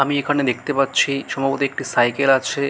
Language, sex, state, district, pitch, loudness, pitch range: Bengali, male, West Bengal, Malda, 140 Hz, -19 LUFS, 135-140 Hz